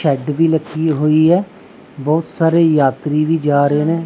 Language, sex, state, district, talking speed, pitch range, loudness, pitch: Punjabi, male, Punjab, Pathankot, 175 wpm, 150-165 Hz, -15 LUFS, 155 Hz